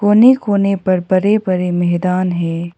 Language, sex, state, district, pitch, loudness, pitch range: Hindi, female, Arunachal Pradesh, Papum Pare, 185 Hz, -14 LUFS, 175-205 Hz